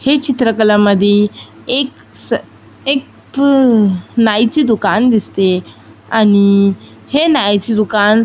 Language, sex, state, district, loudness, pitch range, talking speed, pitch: Marathi, female, Maharashtra, Aurangabad, -13 LUFS, 200-260 Hz, 115 wpm, 215 Hz